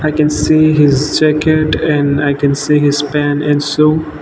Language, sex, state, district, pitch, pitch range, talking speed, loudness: English, male, Nagaland, Dimapur, 150 Hz, 145-155 Hz, 185 wpm, -12 LUFS